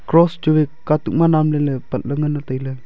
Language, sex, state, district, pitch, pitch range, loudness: Wancho, male, Arunachal Pradesh, Longding, 150 Hz, 135-155 Hz, -18 LUFS